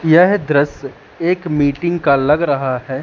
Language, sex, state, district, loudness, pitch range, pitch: Hindi, male, Madhya Pradesh, Katni, -15 LUFS, 140-170 Hz, 145 Hz